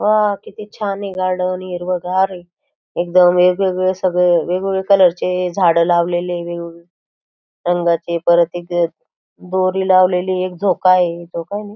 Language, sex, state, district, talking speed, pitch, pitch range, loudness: Marathi, female, Maharashtra, Aurangabad, 125 wpm, 180 Hz, 175-185 Hz, -16 LUFS